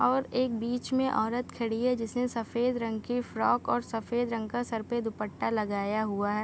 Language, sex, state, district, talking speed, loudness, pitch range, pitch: Hindi, female, Uttar Pradesh, Deoria, 205 wpm, -30 LUFS, 220-245 Hz, 235 Hz